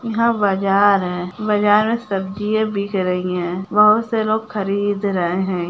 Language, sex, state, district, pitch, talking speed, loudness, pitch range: Hindi, male, Bihar, Gopalganj, 205 Hz, 160 wpm, -18 LUFS, 190-215 Hz